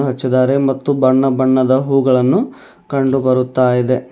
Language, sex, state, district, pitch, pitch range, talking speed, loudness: Kannada, male, Karnataka, Bidar, 130 Hz, 130-135 Hz, 100 wpm, -14 LUFS